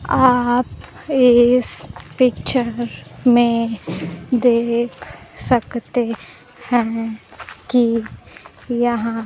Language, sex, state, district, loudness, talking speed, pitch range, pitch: Hindi, female, Bihar, Kaimur, -18 LUFS, 60 wpm, 230-245 Hz, 240 Hz